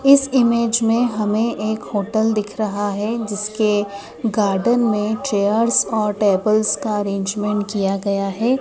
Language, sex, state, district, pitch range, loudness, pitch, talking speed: Hindi, female, Madhya Pradesh, Dhar, 205-225 Hz, -19 LUFS, 210 Hz, 140 wpm